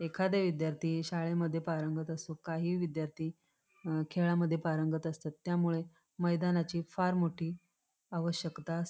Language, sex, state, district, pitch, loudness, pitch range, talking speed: Marathi, female, Maharashtra, Pune, 165 Hz, -35 LUFS, 160-175 Hz, 110 wpm